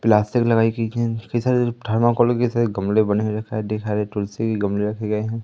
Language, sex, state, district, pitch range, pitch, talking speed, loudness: Hindi, male, Madhya Pradesh, Katni, 105-120 Hz, 110 Hz, 220 wpm, -21 LUFS